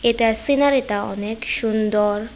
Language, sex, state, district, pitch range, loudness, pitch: Bengali, female, Tripura, West Tripura, 210-235 Hz, -17 LUFS, 220 Hz